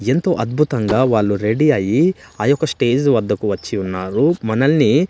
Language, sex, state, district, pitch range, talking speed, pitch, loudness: Telugu, male, Andhra Pradesh, Manyam, 110-150 Hz, 130 wpm, 130 Hz, -17 LUFS